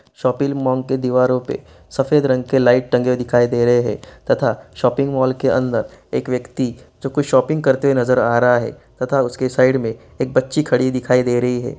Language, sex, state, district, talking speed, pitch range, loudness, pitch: Hindi, male, Bihar, East Champaran, 205 wpm, 125-135 Hz, -18 LUFS, 125 Hz